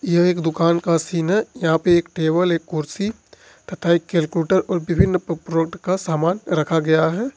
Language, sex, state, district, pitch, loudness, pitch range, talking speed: Hindi, male, Jharkhand, Ranchi, 170 Hz, -20 LUFS, 165-185 Hz, 185 wpm